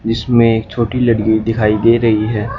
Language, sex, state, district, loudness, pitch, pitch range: Hindi, male, Haryana, Rohtak, -14 LUFS, 115 Hz, 110-115 Hz